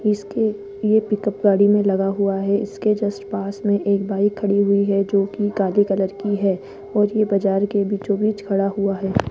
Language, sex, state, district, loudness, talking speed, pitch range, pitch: Hindi, female, Rajasthan, Jaipur, -20 LUFS, 205 wpm, 200-205 Hz, 200 Hz